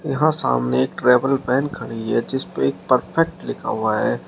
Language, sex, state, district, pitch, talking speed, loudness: Hindi, male, Uttar Pradesh, Shamli, 125 Hz, 180 wpm, -20 LUFS